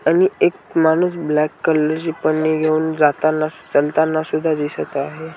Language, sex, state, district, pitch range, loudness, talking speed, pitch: Marathi, male, Maharashtra, Washim, 155-160 Hz, -18 LUFS, 135 wpm, 155 Hz